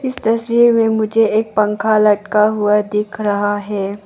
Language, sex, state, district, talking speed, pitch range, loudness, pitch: Hindi, female, Arunachal Pradesh, Papum Pare, 165 wpm, 210-225 Hz, -15 LUFS, 215 Hz